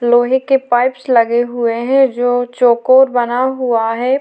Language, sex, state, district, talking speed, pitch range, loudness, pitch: Hindi, female, Uttarakhand, Tehri Garhwal, 155 wpm, 240-260 Hz, -13 LUFS, 245 Hz